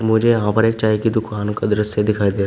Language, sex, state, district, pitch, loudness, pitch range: Hindi, male, Uttar Pradesh, Shamli, 105 Hz, -18 LUFS, 105-110 Hz